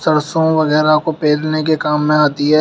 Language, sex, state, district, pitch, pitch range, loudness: Hindi, male, Uttar Pradesh, Shamli, 155 Hz, 150-155 Hz, -14 LUFS